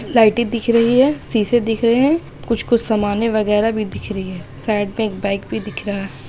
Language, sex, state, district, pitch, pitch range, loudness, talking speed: Hindi, female, Bihar, Darbhanga, 220 Hz, 205-235 Hz, -18 LUFS, 220 wpm